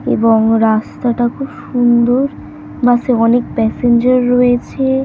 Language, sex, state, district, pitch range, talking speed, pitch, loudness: Bengali, female, West Bengal, North 24 Parganas, 230-250 Hz, 105 wpm, 245 Hz, -13 LUFS